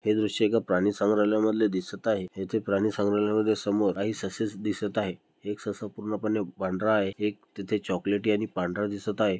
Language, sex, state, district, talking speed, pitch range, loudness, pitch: Marathi, male, Maharashtra, Dhule, 170 wpm, 100-110 Hz, -28 LUFS, 105 Hz